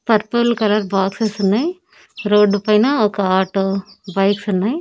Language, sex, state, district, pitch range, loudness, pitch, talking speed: Telugu, female, Andhra Pradesh, Annamaya, 195-220 Hz, -17 LUFS, 210 Hz, 125 wpm